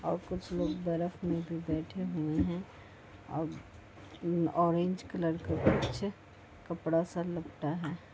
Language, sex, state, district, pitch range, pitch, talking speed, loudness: Hindi, female, West Bengal, Malda, 115-170 Hz, 165 Hz, 140 wpm, -34 LUFS